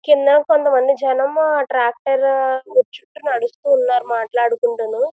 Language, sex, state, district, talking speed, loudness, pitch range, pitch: Telugu, female, Andhra Pradesh, Visakhapatnam, 95 wpm, -17 LUFS, 245-295 Hz, 270 Hz